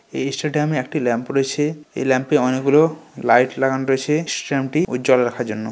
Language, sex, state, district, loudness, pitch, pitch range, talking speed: Bengali, male, West Bengal, North 24 Parganas, -19 LUFS, 135 Hz, 130-150 Hz, 190 wpm